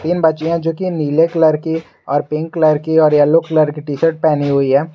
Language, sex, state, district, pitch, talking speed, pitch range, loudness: Hindi, male, Jharkhand, Garhwa, 160 Hz, 205 wpm, 150-165 Hz, -15 LUFS